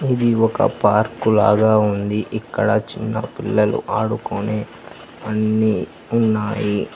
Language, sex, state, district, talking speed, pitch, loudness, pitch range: Telugu, male, Telangana, Hyderabad, 95 wpm, 110 Hz, -19 LUFS, 105-110 Hz